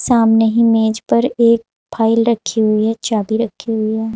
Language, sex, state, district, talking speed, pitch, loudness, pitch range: Hindi, female, Uttar Pradesh, Saharanpur, 190 wpm, 225 Hz, -15 LUFS, 220-230 Hz